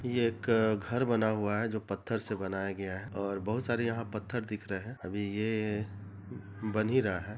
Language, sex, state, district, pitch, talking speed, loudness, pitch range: Hindi, male, Chhattisgarh, Rajnandgaon, 105 Hz, 210 wpm, -33 LUFS, 100-115 Hz